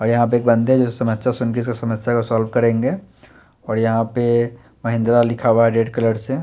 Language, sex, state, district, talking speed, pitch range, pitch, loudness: Hindi, male, Chandigarh, Chandigarh, 235 wpm, 115-120 Hz, 115 Hz, -18 LUFS